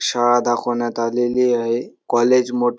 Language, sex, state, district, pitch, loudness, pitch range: Marathi, male, Maharashtra, Dhule, 120 Hz, -18 LUFS, 120-125 Hz